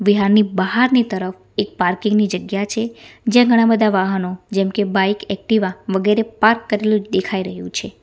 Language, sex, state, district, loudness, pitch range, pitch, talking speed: Gujarati, female, Gujarat, Valsad, -18 LUFS, 190-220 Hz, 205 Hz, 155 wpm